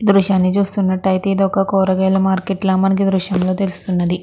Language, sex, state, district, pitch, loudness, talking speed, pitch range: Telugu, female, Andhra Pradesh, Krishna, 190 Hz, -16 LUFS, 170 wpm, 185-195 Hz